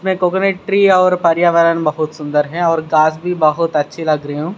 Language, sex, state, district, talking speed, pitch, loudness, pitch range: Hindi, male, Maharashtra, Sindhudurg, 210 wpm, 165 Hz, -14 LUFS, 155-180 Hz